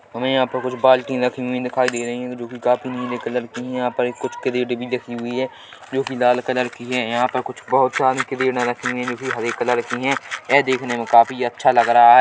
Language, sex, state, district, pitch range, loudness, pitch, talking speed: Hindi, male, Chhattisgarh, Korba, 120-130 Hz, -20 LUFS, 125 Hz, 270 wpm